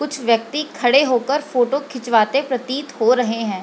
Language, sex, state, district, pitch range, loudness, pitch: Hindi, female, Bihar, Lakhisarai, 235-280 Hz, -18 LUFS, 255 Hz